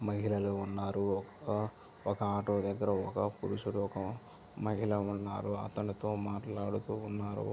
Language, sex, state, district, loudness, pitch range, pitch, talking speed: Telugu, male, Andhra Pradesh, Visakhapatnam, -36 LUFS, 100-105 Hz, 100 Hz, 105 wpm